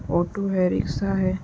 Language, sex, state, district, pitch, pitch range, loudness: Hindi, female, Uttar Pradesh, Etah, 185 Hz, 175-195 Hz, -24 LUFS